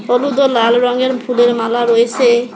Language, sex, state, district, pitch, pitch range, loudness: Bengali, male, West Bengal, Alipurduar, 240 Hz, 235-250 Hz, -13 LUFS